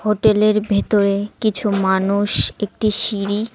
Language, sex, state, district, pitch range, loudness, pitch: Bengali, female, West Bengal, Cooch Behar, 200-215 Hz, -17 LUFS, 205 Hz